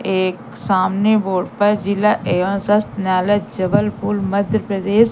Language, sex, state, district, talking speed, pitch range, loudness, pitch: Hindi, female, Madhya Pradesh, Katni, 130 wpm, 190-210 Hz, -18 LUFS, 200 Hz